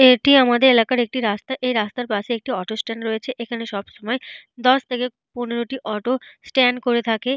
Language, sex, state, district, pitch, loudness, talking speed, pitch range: Bengali, female, Jharkhand, Jamtara, 245 Hz, -20 LUFS, 180 wpm, 225-255 Hz